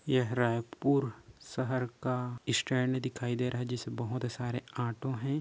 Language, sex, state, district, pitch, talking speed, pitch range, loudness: Chhattisgarhi, male, Chhattisgarh, Korba, 125 Hz, 155 wpm, 120-130 Hz, -33 LUFS